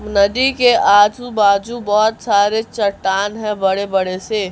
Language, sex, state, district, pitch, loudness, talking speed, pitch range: Hindi, male, Chhattisgarh, Raipur, 205 Hz, -15 LUFS, 145 wpm, 200-220 Hz